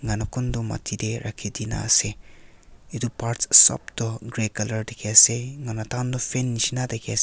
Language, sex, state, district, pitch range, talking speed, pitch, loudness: Nagamese, male, Nagaland, Kohima, 110-125 Hz, 200 wpm, 115 Hz, -21 LUFS